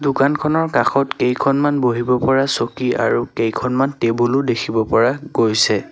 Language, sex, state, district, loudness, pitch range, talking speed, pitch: Assamese, male, Assam, Sonitpur, -17 LUFS, 115-140 Hz, 130 wpm, 125 Hz